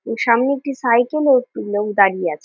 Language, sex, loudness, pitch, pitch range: Bengali, female, -17 LUFS, 235 Hz, 205-265 Hz